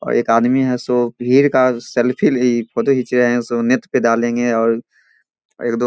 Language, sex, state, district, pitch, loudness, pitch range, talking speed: Hindi, male, Bihar, Darbhanga, 120 Hz, -16 LUFS, 120-125 Hz, 215 wpm